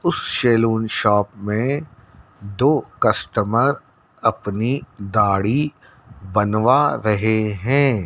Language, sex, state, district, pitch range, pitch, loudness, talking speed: Hindi, male, Madhya Pradesh, Dhar, 105-125 Hz, 110 Hz, -19 LUFS, 80 wpm